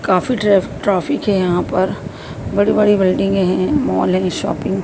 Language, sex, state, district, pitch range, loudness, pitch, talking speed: Hindi, female, Madhya Pradesh, Dhar, 185-200 Hz, -16 LUFS, 190 Hz, 160 wpm